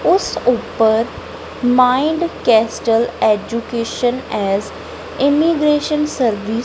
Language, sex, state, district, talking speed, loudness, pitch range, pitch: Punjabi, female, Punjab, Kapurthala, 80 wpm, -16 LUFS, 225-295 Hz, 240 Hz